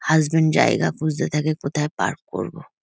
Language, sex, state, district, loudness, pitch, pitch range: Bengali, female, West Bengal, Kolkata, -21 LUFS, 155 Hz, 150-160 Hz